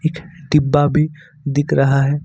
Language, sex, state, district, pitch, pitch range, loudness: Hindi, male, Jharkhand, Ranchi, 150 Hz, 145-160 Hz, -17 LUFS